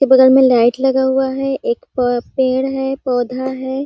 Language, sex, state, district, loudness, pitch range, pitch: Hindi, female, Chhattisgarh, Sarguja, -15 LUFS, 255-270 Hz, 265 Hz